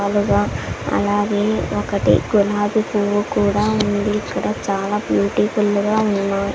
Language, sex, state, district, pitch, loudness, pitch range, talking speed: Telugu, female, Andhra Pradesh, Sri Satya Sai, 205 Hz, -19 LUFS, 200-210 Hz, 100 wpm